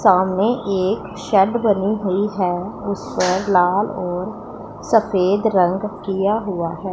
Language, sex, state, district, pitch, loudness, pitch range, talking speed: Hindi, female, Punjab, Pathankot, 195 Hz, -19 LUFS, 185-205 Hz, 130 wpm